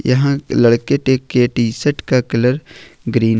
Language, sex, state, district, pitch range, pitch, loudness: Hindi, male, Jharkhand, Ranchi, 120-140 Hz, 125 Hz, -16 LUFS